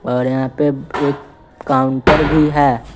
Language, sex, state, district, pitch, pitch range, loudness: Hindi, female, Bihar, West Champaran, 140 Hz, 130-150 Hz, -15 LUFS